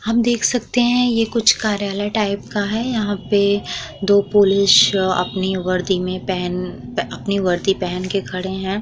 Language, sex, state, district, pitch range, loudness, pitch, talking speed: Hindi, female, Uttar Pradesh, Muzaffarnagar, 185-215 Hz, -18 LUFS, 200 Hz, 165 wpm